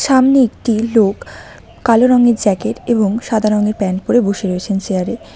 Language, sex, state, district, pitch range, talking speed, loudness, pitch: Bengali, female, West Bengal, Alipurduar, 200-240 Hz, 170 wpm, -14 LUFS, 220 Hz